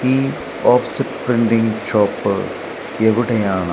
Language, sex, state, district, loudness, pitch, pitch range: Malayalam, male, Kerala, Kasaragod, -17 LUFS, 115 Hz, 105-120 Hz